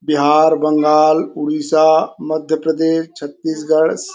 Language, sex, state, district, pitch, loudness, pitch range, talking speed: Chhattisgarhi, male, Chhattisgarh, Korba, 155 Hz, -15 LUFS, 150-160 Hz, 85 wpm